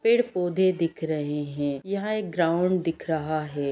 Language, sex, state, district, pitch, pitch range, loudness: Hindi, female, Bihar, Gaya, 165 Hz, 150-185 Hz, -26 LUFS